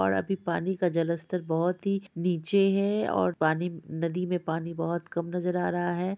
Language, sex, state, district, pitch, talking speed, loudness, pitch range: Hindi, female, Bihar, Purnia, 175 Hz, 195 wpm, -28 LUFS, 165-185 Hz